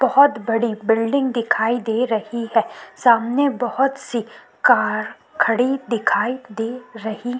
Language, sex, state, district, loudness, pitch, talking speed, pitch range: Hindi, female, Uttarakhand, Tehri Garhwal, -20 LUFS, 235 Hz, 130 wpm, 225-255 Hz